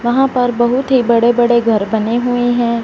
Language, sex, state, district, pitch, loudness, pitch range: Hindi, female, Punjab, Fazilka, 240 Hz, -13 LUFS, 235-245 Hz